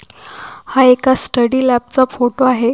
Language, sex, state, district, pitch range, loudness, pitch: Marathi, female, Maharashtra, Washim, 245-260 Hz, -13 LUFS, 255 Hz